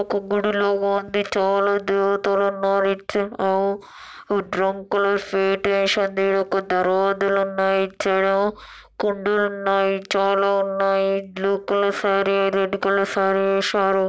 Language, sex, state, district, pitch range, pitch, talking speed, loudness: Telugu, female, Telangana, Nalgonda, 195-200 Hz, 195 Hz, 130 wpm, -21 LUFS